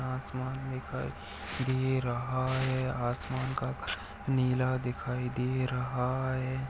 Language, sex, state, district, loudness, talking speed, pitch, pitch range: Hindi, male, Chhattisgarh, Balrampur, -33 LUFS, 115 wpm, 130 Hz, 125-130 Hz